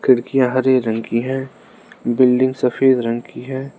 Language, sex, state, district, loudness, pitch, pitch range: Hindi, male, Arunachal Pradesh, Lower Dibang Valley, -18 LUFS, 130 Hz, 120-130 Hz